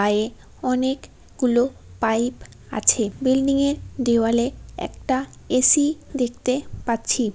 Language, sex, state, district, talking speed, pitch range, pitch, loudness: Bengali, female, West Bengal, Paschim Medinipur, 105 wpm, 230-270 Hz, 255 Hz, -22 LUFS